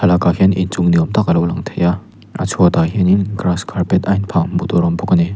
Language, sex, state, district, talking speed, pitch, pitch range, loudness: Mizo, male, Mizoram, Aizawl, 290 wpm, 90 Hz, 85-100 Hz, -15 LUFS